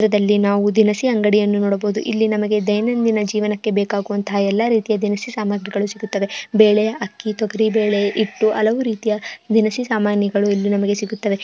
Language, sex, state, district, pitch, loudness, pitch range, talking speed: Kannada, female, Karnataka, Chamarajanagar, 210 Hz, -18 LUFS, 205-220 Hz, 155 wpm